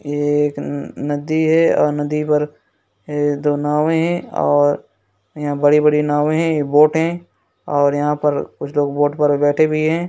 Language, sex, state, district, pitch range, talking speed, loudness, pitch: Hindi, male, Uttar Pradesh, Hamirpur, 145-155 Hz, 180 wpm, -17 LUFS, 150 Hz